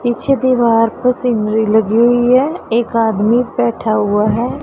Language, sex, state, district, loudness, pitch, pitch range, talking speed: Hindi, female, Punjab, Pathankot, -14 LUFS, 230 Hz, 220-250 Hz, 155 wpm